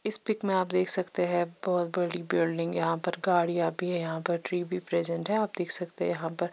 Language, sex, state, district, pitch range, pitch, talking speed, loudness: Hindi, female, Chandigarh, Chandigarh, 170-185 Hz, 175 Hz, 255 wpm, -23 LUFS